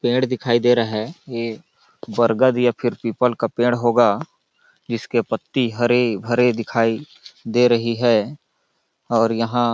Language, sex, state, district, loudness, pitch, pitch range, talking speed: Hindi, male, Chhattisgarh, Balrampur, -19 LUFS, 120 Hz, 115-120 Hz, 135 wpm